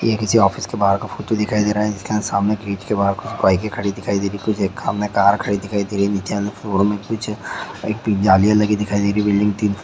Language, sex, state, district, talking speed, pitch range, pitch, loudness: Hindi, male, Bihar, Gopalganj, 250 wpm, 100-105 Hz, 105 Hz, -19 LUFS